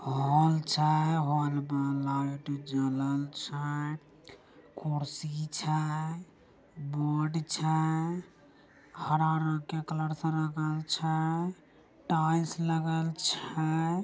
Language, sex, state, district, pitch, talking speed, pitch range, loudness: Angika, female, Bihar, Begusarai, 155 Hz, 110 wpm, 145-160 Hz, -31 LUFS